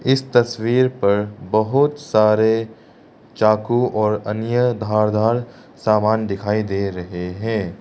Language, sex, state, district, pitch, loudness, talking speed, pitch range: Hindi, male, Arunachal Pradesh, Lower Dibang Valley, 110 Hz, -19 LUFS, 105 wpm, 105-120 Hz